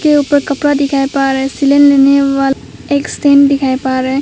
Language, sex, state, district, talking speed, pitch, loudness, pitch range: Hindi, female, Arunachal Pradesh, Papum Pare, 185 wpm, 280 Hz, -11 LUFS, 270-285 Hz